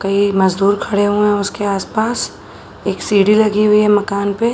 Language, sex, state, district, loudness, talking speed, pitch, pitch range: Hindi, female, Uttar Pradesh, Jalaun, -15 LUFS, 210 wpm, 205 Hz, 200-210 Hz